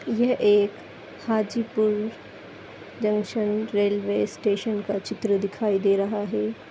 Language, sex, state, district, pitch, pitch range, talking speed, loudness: Kumaoni, female, Uttarakhand, Tehri Garhwal, 210 Hz, 200-220 Hz, 105 wpm, -24 LUFS